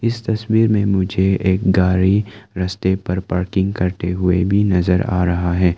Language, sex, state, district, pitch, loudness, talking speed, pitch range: Hindi, male, Arunachal Pradesh, Lower Dibang Valley, 95 Hz, -17 LUFS, 165 wpm, 90-100 Hz